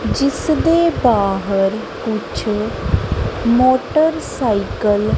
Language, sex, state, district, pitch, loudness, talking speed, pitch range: Punjabi, female, Punjab, Kapurthala, 220 Hz, -17 LUFS, 80 wpm, 195-275 Hz